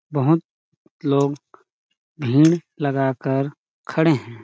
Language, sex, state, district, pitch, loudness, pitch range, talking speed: Hindi, male, Chhattisgarh, Sarguja, 145 Hz, -21 LUFS, 135-160 Hz, 95 wpm